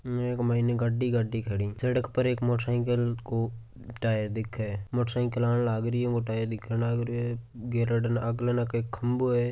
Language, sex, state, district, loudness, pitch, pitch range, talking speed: Marwari, male, Rajasthan, Churu, -29 LUFS, 120 Hz, 115-120 Hz, 155 wpm